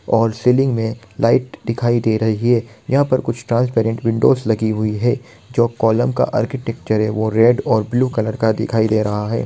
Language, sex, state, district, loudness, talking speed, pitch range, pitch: Hindi, male, Jharkhand, Sahebganj, -17 LUFS, 195 wpm, 110-120 Hz, 115 Hz